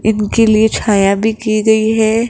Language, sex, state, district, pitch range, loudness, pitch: Hindi, female, Rajasthan, Jaipur, 215-220 Hz, -12 LUFS, 220 Hz